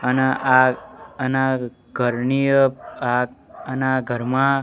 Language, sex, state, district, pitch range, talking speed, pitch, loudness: Gujarati, male, Gujarat, Gandhinagar, 125-135 Hz, 105 wpm, 130 Hz, -20 LUFS